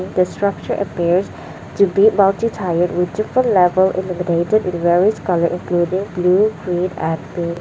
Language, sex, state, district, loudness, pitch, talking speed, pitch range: English, female, Nagaland, Dimapur, -17 LUFS, 180 Hz, 135 wpm, 175-200 Hz